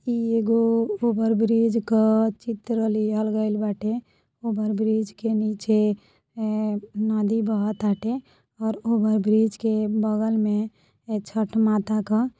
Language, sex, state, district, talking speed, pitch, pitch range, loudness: Bhojpuri, female, Uttar Pradesh, Deoria, 115 wpm, 220 Hz, 215-225 Hz, -23 LUFS